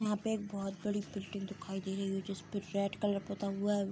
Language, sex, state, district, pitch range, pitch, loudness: Hindi, female, Bihar, Bhagalpur, 195-205 Hz, 200 Hz, -38 LUFS